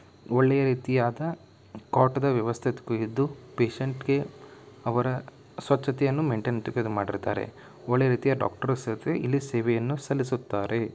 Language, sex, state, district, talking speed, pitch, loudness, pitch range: Kannada, male, Karnataka, Bijapur, 100 wpm, 125 Hz, -27 LUFS, 115-135 Hz